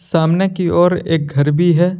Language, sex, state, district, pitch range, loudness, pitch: Hindi, male, Jharkhand, Deoghar, 165-180 Hz, -15 LUFS, 175 Hz